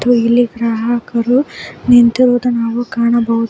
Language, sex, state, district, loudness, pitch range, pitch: Kannada, female, Karnataka, Bangalore, -13 LUFS, 230-245 Hz, 235 Hz